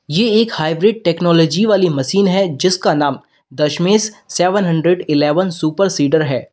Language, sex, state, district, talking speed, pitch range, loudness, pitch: Hindi, male, Uttar Pradesh, Lalitpur, 145 wpm, 155-195 Hz, -15 LUFS, 175 Hz